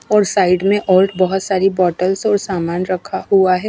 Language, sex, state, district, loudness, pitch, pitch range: Hindi, female, Himachal Pradesh, Shimla, -16 LUFS, 190 Hz, 185-200 Hz